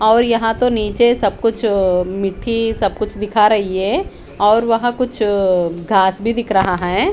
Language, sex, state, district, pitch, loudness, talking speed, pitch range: Hindi, female, Haryana, Charkhi Dadri, 210 Hz, -16 LUFS, 175 wpm, 195-230 Hz